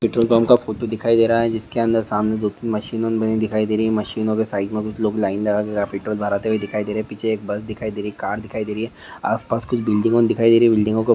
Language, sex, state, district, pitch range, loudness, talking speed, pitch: Hindi, male, Andhra Pradesh, Guntur, 105-115 Hz, -20 LUFS, 285 wpm, 110 Hz